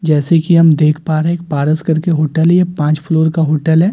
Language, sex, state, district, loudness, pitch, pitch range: Hindi, male, Delhi, New Delhi, -13 LUFS, 160 Hz, 155-170 Hz